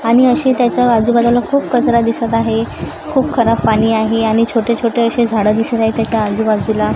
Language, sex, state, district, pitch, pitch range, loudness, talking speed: Marathi, female, Maharashtra, Gondia, 230 Hz, 225-240 Hz, -14 LUFS, 170 wpm